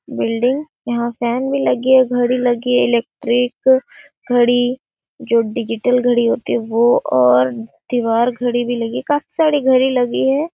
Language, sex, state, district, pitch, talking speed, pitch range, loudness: Hindi, female, Chhattisgarh, Sarguja, 245 Hz, 135 wpm, 235-260 Hz, -16 LUFS